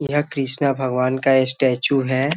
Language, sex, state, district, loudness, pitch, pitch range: Hindi, male, Bihar, Muzaffarpur, -19 LUFS, 135 Hz, 130-140 Hz